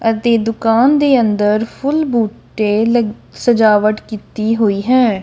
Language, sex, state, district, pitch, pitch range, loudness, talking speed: Punjabi, female, Punjab, Kapurthala, 225 Hz, 215-240 Hz, -14 LUFS, 125 wpm